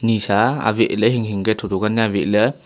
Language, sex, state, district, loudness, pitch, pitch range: Wancho, male, Arunachal Pradesh, Longding, -18 LUFS, 110 Hz, 105-115 Hz